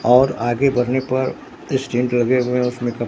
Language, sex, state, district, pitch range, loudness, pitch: Hindi, male, Bihar, Katihar, 120-130 Hz, -19 LUFS, 125 Hz